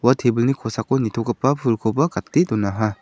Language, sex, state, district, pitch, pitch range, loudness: Garo, male, Meghalaya, South Garo Hills, 115 Hz, 110-130 Hz, -20 LUFS